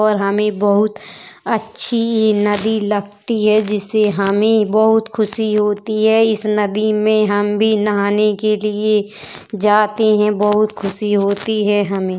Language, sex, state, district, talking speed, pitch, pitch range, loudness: Bundeli, female, Uttar Pradesh, Jalaun, 140 wpm, 210 Hz, 205-215 Hz, -16 LUFS